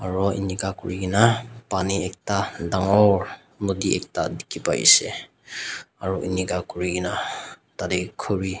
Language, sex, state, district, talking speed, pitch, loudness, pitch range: Nagamese, male, Nagaland, Dimapur, 110 wpm, 95 Hz, -23 LUFS, 95-100 Hz